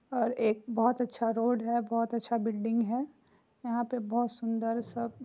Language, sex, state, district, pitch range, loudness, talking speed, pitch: Hindi, female, Bihar, Muzaffarpur, 230-240 Hz, -31 LUFS, 185 wpm, 235 Hz